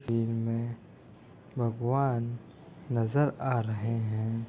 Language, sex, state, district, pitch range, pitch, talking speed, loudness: Hindi, male, Bihar, Saharsa, 115-125 Hz, 115 Hz, 95 wpm, -31 LUFS